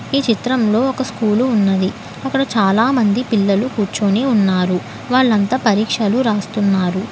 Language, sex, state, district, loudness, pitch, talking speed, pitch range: Telugu, female, Telangana, Hyderabad, -16 LUFS, 215 Hz, 120 wpm, 200-255 Hz